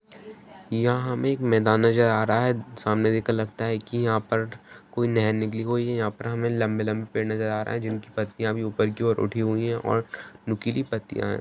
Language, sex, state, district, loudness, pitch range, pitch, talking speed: Hindi, male, Bihar, Jamui, -25 LUFS, 110-120 Hz, 115 Hz, 190 wpm